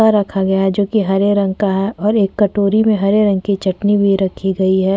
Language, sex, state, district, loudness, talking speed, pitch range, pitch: Hindi, female, Uttar Pradesh, Jyotiba Phule Nagar, -15 LUFS, 240 wpm, 195-205 Hz, 200 Hz